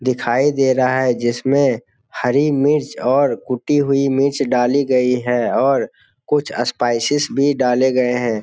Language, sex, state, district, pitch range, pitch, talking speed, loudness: Hindi, male, Bihar, Jamui, 125-140 Hz, 130 Hz, 150 wpm, -17 LUFS